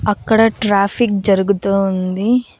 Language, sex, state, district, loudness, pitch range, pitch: Telugu, female, Andhra Pradesh, Annamaya, -15 LUFS, 195-220 Hz, 200 Hz